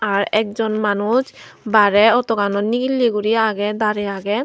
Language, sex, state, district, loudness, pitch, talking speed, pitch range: Chakma, female, Tripura, Unakoti, -17 LUFS, 215 Hz, 160 wpm, 205-225 Hz